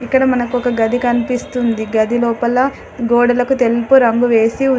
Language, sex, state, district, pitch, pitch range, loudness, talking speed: Telugu, female, Telangana, Adilabad, 245 Hz, 235-250 Hz, -15 LUFS, 150 wpm